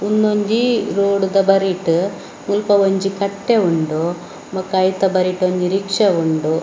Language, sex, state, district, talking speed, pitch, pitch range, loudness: Tulu, female, Karnataka, Dakshina Kannada, 120 wpm, 195 Hz, 180-200 Hz, -17 LUFS